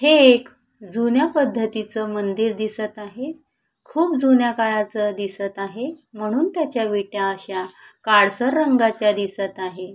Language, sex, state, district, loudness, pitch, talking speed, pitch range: Marathi, female, Maharashtra, Sindhudurg, -21 LUFS, 220 Hz, 120 wpm, 200-255 Hz